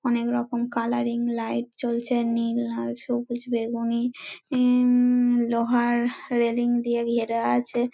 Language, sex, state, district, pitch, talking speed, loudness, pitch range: Bengali, female, West Bengal, Dakshin Dinajpur, 240 Hz, 115 wpm, -24 LUFS, 235-245 Hz